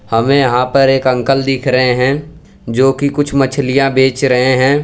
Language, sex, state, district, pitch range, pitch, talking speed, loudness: Hindi, male, Gujarat, Valsad, 130-140 Hz, 135 Hz, 175 wpm, -12 LUFS